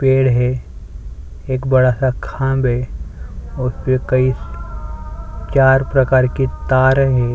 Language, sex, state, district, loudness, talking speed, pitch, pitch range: Hindi, male, Chhattisgarh, Sukma, -16 LUFS, 105 wpm, 130 Hz, 115-130 Hz